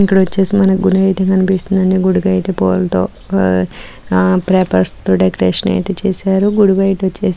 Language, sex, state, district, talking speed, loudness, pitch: Telugu, female, Telangana, Nalgonda, 120 wpm, -13 LUFS, 190 Hz